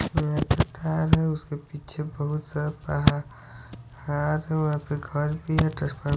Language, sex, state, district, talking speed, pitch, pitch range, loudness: Hindi, male, Odisha, Sambalpur, 115 wpm, 150 Hz, 145-155 Hz, -27 LUFS